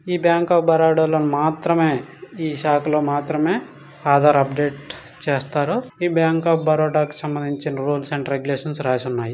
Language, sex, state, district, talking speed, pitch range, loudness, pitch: Telugu, male, Karnataka, Dharwad, 155 wpm, 145-160 Hz, -20 LUFS, 150 Hz